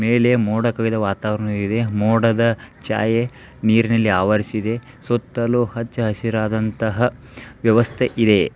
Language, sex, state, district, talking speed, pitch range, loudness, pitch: Kannada, male, Karnataka, Belgaum, 90 wpm, 110-120 Hz, -19 LUFS, 115 Hz